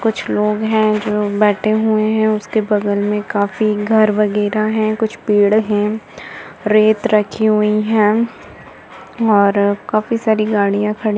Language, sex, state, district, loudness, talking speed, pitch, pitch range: Hindi, female, Uttar Pradesh, Jalaun, -15 LUFS, 145 wpm, 210 Hz, 205-215 Hz